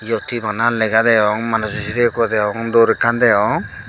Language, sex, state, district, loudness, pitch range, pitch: Chakma, female, Tripura, Dhalai, -16 LUFS, 110-115 Hz, 115 Hz